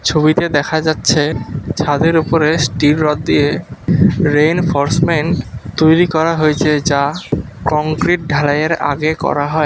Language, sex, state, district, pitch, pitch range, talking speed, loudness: Bengali, male, West Bengal, Alipurduar, 155 Hz, 145-160 Hz, 120 wpm, -14 LUFS